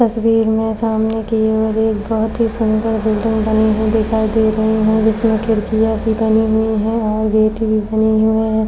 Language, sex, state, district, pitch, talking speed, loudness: Hindi, female, Maharashtra, Chandrapur, 220 Hz, 195 wpm, -16 LUFS